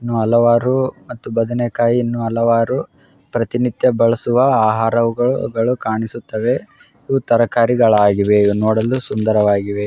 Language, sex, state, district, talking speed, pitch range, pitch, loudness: Kannada, male, Karnataka, Raichur, 90 wpm, 110-120 Hz, 115 Hz, -16 LUFS